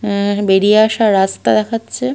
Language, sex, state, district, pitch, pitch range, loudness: Bengali, female, West Bengal, Malda, 205 Hz, 190-215 Hz, -14 LUFS